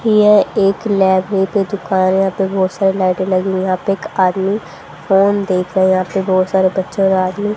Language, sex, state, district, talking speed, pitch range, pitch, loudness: Hindi, female, Haryana, Charkhi Dadri, 235 wpm, 185-200 Hz, 190 Hz, -15 LUFS